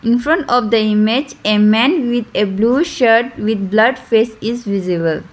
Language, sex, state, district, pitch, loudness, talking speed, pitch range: English, female, Arunachal Pradesh, Lower Dibang Valley, 230 Hz, -15 LUFS, 170 wpm, 215-245 Hz